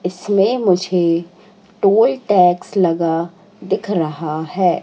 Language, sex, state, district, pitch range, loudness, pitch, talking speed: Hindi, female, Madhya Pradesh, Katni, 170-200 Hz, -17 LUFS, 180 Hz, 100 wpm